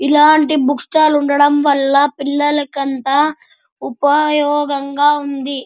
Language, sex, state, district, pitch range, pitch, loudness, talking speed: Telugu, male, Andhra Pradesh, Anantapur, 280-295 Hz, 290 Hz, -14 LUFS, 85 wpm